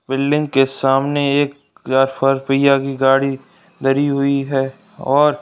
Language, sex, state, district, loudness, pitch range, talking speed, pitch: Hindi, male, Uttarakhand, Uttarkashi, -17 LUFS, 135-140 Hz, 110 wpm, 135 Hz